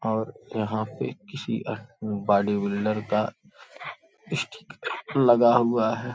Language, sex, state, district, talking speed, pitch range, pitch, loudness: Hindi, male, Uttar Pradesh, Gorakhpur, 105 wpm, 105-120 Hz, 110 Hz, -26 LUFS